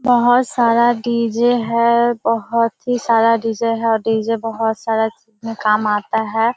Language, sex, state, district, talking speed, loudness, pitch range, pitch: Hindi, female, Bihar, Kishanganj, 165 wpm, -17 LUFS, 225-235 Hz, 230 Hz